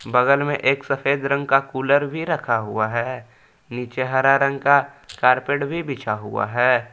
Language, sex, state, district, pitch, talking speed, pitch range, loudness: Hindi, male, Jharkhand, Palamu, 135 Hz, 175 wpm, 125-140 Hz, -20 LUFS